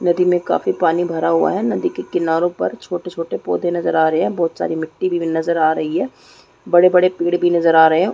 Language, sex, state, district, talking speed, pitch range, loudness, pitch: Hindi, female, Chhattisgarh, Raigarh, 250 wpm, 160-175 Hz, -17 LUFS, 170 Hz